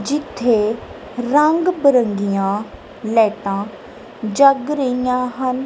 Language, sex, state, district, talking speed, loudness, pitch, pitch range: Punjabi, female, Punjab, Kapurthala, 75 wpm, -17 LUFS, 245 Hz, 215-275 Hz